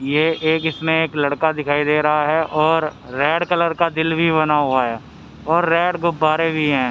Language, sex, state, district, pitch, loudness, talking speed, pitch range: Hindi, male, Haryana, Rohtak, 155 Hz, -18 LUFS, 200 wpm, 150-165 Hz